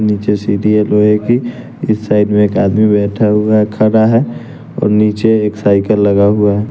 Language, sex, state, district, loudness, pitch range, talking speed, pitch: Hindi, male, Bihar, West Champaran, -12 LUFS, 105-110 Hz, 195 wpm, 105 Hz